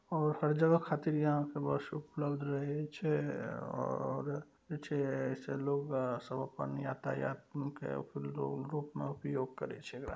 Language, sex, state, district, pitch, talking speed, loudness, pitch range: Maithili, male, Bihar, Saharsa, 145 Hz, 140 wpm, -37 LUFS, 130-150 Hz